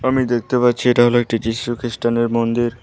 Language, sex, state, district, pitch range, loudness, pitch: Bengali, male, West Bengal, Alipurduar, 115-120 Hz, -17 LUFS, 120 Hz